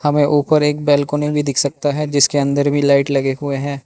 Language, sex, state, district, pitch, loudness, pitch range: Hindi, male, Manipur, Imphal West, 145 Hz, -16 LUFS, 140-145 Hz